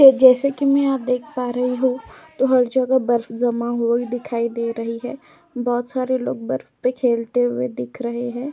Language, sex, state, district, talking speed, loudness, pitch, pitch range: Hindi, female, Uttar Pradesh, Etah, 210 wpm, -20 LUFS, 245 Hz, 235-260 Hz